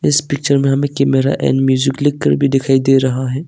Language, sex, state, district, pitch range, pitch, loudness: Hindi, male, Arunachal Pradesh, Longding, 135-140 Hz, 135 Hz, -14 LUFS